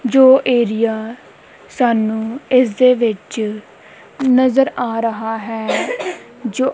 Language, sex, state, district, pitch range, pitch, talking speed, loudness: Punjabi, female, Punjab, Kapurthala, 225-255 Hz, 235 Hz, 100 wpm, -16 LUFS